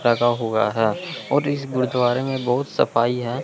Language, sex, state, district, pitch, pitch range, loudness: Hindi, male, Chandigarh, Chandigarh, 125 Hz, 120-135 Hz, -21 LUFS